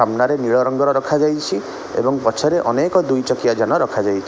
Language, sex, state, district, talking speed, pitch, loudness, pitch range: Odia, male, Odisha, Khordha, 140 wpm, 130 Hz, -18 LUFS, 120-150 Hz